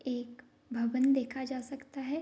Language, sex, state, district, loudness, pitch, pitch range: Hindi, female, Bihar, Madhepura, -34 LUFS, 260 Hz, 250-270 Hz